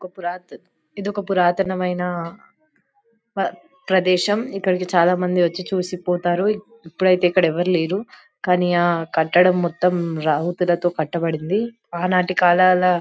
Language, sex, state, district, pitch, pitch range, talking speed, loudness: Telugu, female, Telangana, Karimnagar, 180 Hz, 175-190 Hz, 115 wpm, -20 LUFS